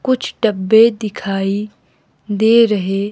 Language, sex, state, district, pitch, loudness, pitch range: Hindi, female, Himachal Pradesh, Shimla, 210 Hz, -15 LUFS, 195-225 Hz